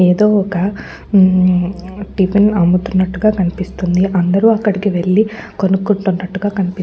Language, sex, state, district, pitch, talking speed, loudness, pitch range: Telugu, female, Andhra Pradesh, Guntur, 190 Hz, 105 wpm, -14 LUFS, 185-205 Hz